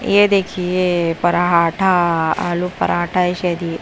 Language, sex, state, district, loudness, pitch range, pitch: Hindi, female, Punjab, Kapurthala, -17 LUFS, 170-185 Hz, 175 Hz